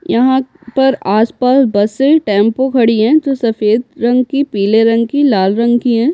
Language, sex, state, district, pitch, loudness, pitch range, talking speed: Hindi, female, Bihar, Kishanganj, 240 Hz, -12 LUFS, 225-270 Hz, 175 wpm